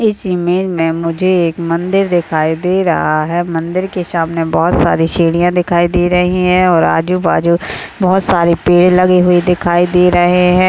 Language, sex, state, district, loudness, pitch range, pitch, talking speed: Hindi, female, Uttarakhand, Tehri Garhwal, -12 LUFS, 170-180 Hz, 175 Hz, 175 wpm